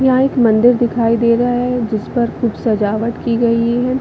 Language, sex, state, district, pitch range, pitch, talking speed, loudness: Hindi, female, Chhattisgarh, Bilaspur, 230-245 Hz, 235 Hz, 210 wpm, -15 LUFS